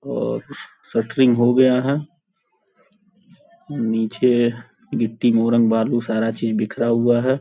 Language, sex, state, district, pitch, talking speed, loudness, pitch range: Hindi, male, Uttar Pradesh, Gorakhpur, 120 Hz, 115 wpm, -19 LUFS, 115-140 Hz